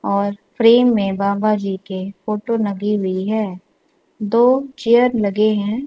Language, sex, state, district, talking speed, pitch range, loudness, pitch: Hindi, female, Punjab, Kapurthala, 145 wpm, 200-235 Hz, -17 LUFS, 215 Hz